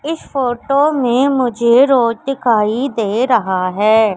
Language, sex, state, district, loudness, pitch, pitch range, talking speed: Hindi, female, Madhya Pradesh, Katni, -14 LUFS, 245 Hz, 220-275 Hz, 130 wpm